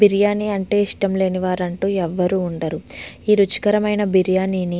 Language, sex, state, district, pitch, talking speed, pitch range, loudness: Telugu, female, Andhra Pradesh, Visakhapatnam, 190 Hz, 150 wpm, 185-205 Hz, -19 LUFS